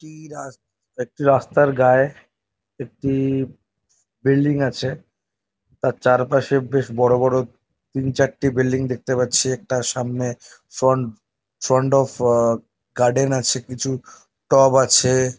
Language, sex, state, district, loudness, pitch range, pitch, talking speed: Bengali, male, West Bengal, North 24 Parganas, -19 LUFS, 120-135 Hz, 130 Hz, 110 wpm